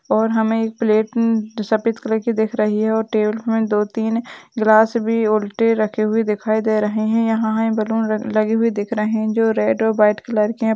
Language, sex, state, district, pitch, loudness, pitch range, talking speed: Hindi, female, Bihar, Madhepura, 220 Hz, -18 LUFS, 215-225 Hz, 230 wpm